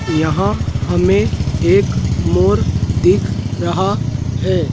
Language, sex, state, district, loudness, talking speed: Hindi, male, Madhya Pradesh, Dhar, -16 LUFS, 90 wpm